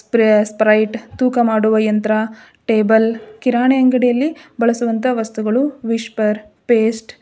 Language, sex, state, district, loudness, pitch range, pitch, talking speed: Kannada, female, Karnataka, Dharwad, -16 LUFS, 220-245 Hz, 225 Hz, 110 wpm